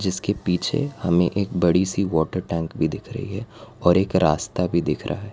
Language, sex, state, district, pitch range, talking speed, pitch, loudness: Hindi, female, Gujarat, Valsad, 85-100 Hz, 215 wpm, 90 Hz, -22 LUFS